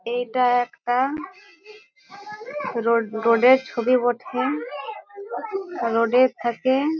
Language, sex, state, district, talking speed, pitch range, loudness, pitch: Bengali, female, West Bengal, Jhargram, 85 wpm, 240-370 Hz, -22 LUFS, 255 Hz